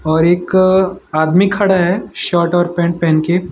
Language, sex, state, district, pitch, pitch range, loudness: Hindi, male, Gujarat, Valsad, 175 Hz, 170-190 Hz, -14 LUFS